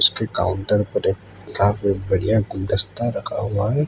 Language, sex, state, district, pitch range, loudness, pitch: Hindi, male, Gujarat, Valsad, 95-105 Hz, -21 LUFS, 100 Hz